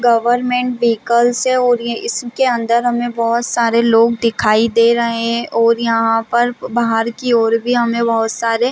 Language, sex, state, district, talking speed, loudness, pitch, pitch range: Hindi, female, Chhattisgarh, Raigarh, 165 wpm, -15 LUFS, 235 Hz, 230-240 Hz